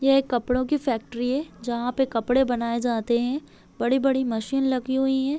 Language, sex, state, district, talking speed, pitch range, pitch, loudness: Hindi, female, Chhattisgarh, Bilaspur, 190 wpm, 240-265 Hz, 255 Hz, -24 LUFS